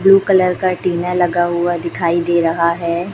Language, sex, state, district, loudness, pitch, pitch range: Hindi, female, Chhattisgarh, Raipur, -16 LUFS, 175 Hz, 170-180 Hz